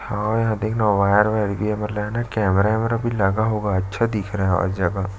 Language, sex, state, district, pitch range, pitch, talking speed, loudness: Hindi, male, Chhattisgarh, Jashpur, 95-110 Hz, 105 Hz, 245 wpm, -21 LUFS